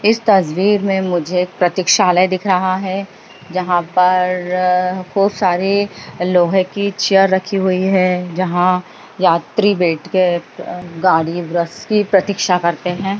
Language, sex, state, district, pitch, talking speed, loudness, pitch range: Hindi, male, Bihar, Madhepura, 185 Hz, 125 wpm, -16 LUFS, 180-195 Hz